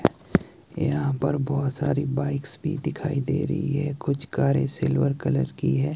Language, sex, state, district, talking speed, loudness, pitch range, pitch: Hindi, male, Himachal Pradesh, Shimla, 160 wpm, -25 LUFS, 135-145 Hz, 140 Hz